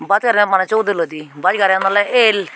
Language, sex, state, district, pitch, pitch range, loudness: Chakma, female, Tripura, Unakoti, 200 Hz, 190-215 Hz, -15 LUFS